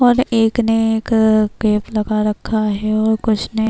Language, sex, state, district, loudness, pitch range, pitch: Urdu, female, Bihar, Kishanganj, -16 LUFS, 215-225 Hz, 220 Hz